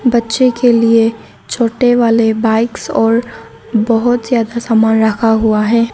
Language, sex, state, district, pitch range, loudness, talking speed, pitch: Hindi, female, Arunachal Pradesh, Lower Dibang Valley, 225-240 Hz, -12 LUFS, 130 wpm, 230 Hz